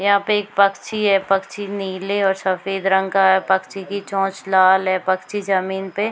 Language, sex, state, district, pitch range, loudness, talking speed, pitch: Hindi, female, Chhattisgarh, Bilaspur, 190-200 Hz, -19 LUFS, 205 wpm, 195 Hz